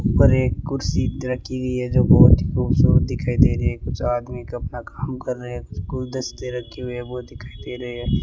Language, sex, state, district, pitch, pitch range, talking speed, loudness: Hindi, male, Rajasthan, Bikaner, 125 Hz, 120-130 Hz, 225 wpm, -21 LUFS